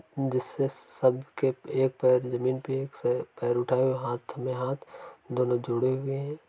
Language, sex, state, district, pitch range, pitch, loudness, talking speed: Hindi, male, Uttar Pradesh, Varanasi, 125-135 Hz, 130 Hz, -29 LUFS, 165 wpm